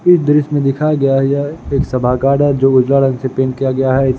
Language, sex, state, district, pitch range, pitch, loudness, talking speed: Hindi, male, Bihar, Jahanabad, 130-145 Hz, 135 Hz, -14 LUFS, 260 wpm